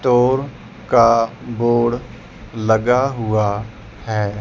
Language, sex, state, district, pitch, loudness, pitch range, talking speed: Hindi, male, Chandigarh, Chandigarh, 115 Hz, -18 LUFS, 110-125 Hz, 80 wpm